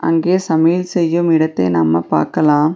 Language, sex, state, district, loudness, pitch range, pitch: Tamil, female, Tamil Nadu, Nilgiris, -15 LUFS, 150-170 Hz, 160 Hz